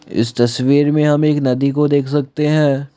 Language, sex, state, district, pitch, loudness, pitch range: Hindi, male, Assam, Kamrup Metropolitan, 145 Hz, -15 LUFS, 135-150 Hz